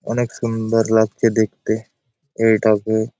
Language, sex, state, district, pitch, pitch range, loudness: Bengali, male, West Bengal, Malda, 110 Hz, 110-115 Hz, -18 LUFS